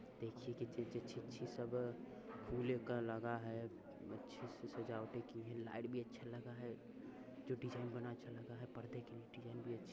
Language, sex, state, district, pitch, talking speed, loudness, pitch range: Hindi, male, Uttar Pradesh, Varanasi, 120 Hz, 180 wpm, -49 LUFS, 115-120 Hz